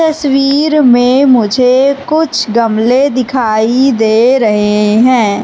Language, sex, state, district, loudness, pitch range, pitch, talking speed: Hindi, female, Madhya Pradesh, Katni, -9 LUFS, 220-275 Hz, 250 Hz, 100 wpm